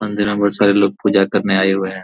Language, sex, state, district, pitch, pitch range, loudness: Hindi, male, Bihar, Araria, 100 Hz, 95-100 Hz, -15 LUFS